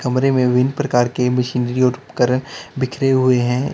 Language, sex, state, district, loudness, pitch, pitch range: Hindi, male, Uttar Pradesh, Lalitpur, -17 LUFS, 125 Hz, 125-130 Hz